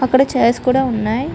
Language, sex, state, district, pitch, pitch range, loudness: Telugu, female, Andhra Pradesh, Chittoor, 255 Hz, 235-265 Hz, -16 LUFS